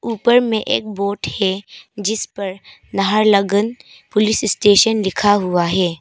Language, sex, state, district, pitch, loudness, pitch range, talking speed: Hindi, female, Arunachal Pradesh, Papum Pare, 205 Hz, -17 LUFS, 195-215 Hz, 130 wpm